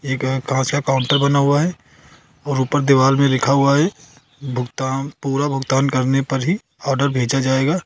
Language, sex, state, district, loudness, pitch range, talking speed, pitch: Hindi, male, Uttar Pradesh, Lucknow, -18 LUFS, 130-140 Hz, 185 wpm, 135 Hz